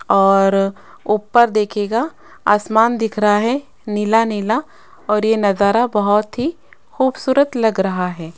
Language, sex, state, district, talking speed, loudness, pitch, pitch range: Hindi, female, Rajasthan, Jaipur, 130 wpm, -17 LUFS, 215 Hz, 205-240 Hz